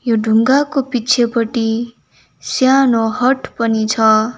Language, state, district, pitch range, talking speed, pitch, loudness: Nepali, West Bengal, Darjeeling, 225-255 Hz, 95 wpm, 235 Hz, -15 LUFS